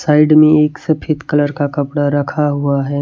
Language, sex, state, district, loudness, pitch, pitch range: Hindi, male, Chhattisgarh, Raipur, -14 LUFS, 145 Hz, 145-155 Hz